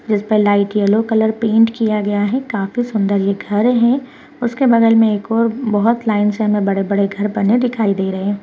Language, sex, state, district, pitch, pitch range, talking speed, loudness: Hindi, female, Uttarakhand, Uttarkashi, 215 Hz, 205-230 Hz, 205 wpm, -16 LUFS